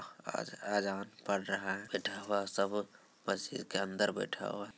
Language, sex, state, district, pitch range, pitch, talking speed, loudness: Angika, male, Bihar, Begusarai, 100-105 Hz, 100 Hz, 200 wpm, -37 LUFS